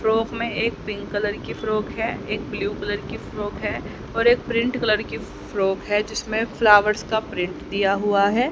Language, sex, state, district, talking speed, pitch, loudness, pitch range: Hindi, female, Haryana, Charkhi Dadri, 195 wpm, 215 Hz, -23 LUFS, 205-230 Hz